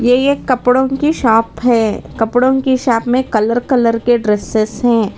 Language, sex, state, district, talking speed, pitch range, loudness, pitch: Hindi, female, Karnataka, Bangalore, 175 wpm, 225-255 Hz, -14 LUFS, 240 Hz